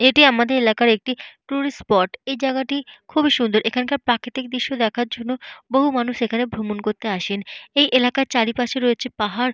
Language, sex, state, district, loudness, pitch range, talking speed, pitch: Bengali, female, Jharkhand, Jamtara, -20 LUFS, 230-270 Hz, 170 wpm, 250 Hz